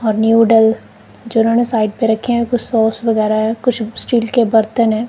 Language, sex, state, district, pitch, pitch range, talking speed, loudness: Hindi, female, Punjab, Kapurthala, 225 Hz, 220-235 Hz, 190 wpm, -14 LUFS